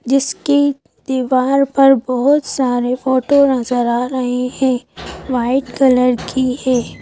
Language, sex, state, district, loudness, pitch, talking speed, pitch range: Hindi, female, Madhya Pradesh, Bhopal, -15 LUFS, 260 Hz, 120 wpm, 250-275 Hz